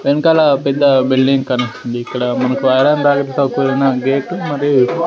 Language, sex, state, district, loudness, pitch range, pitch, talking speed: Telugu, male, Andhra Pradesh, Sri Satya Sai, -14 LUFS, 125-145 Hz, 135 Hz, 120 wpm